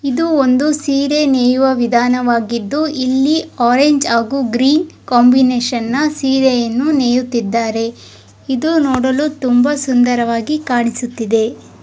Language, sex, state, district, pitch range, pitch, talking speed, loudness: Kannada, female, Karnataka, Raichur, 240-280 Hz, 255 Hz, 90 wpm, -14 LUFS